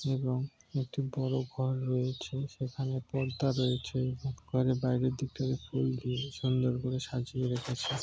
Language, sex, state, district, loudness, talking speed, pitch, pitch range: Bengali, male, West Bengal, Malda, -33 LUFS, 140 wpm, 130 Hz, 130-135 Hz